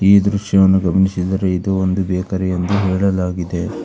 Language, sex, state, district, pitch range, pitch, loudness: Kannada, male, Karnataka, Bangalore, 90-100 Hz, 95 Hz, -17 LUFS